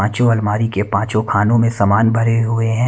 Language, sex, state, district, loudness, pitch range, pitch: Hindi, male, Punjab, Kapurthala, -16 LUFS, 105-115 Hz, 115 Hz